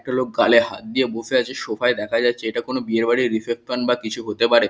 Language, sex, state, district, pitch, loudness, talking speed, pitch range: Bengali, male, West Bengal, Kolkata, 120 Hz, -21 LUFS, 255 wpm, 115-125 Hz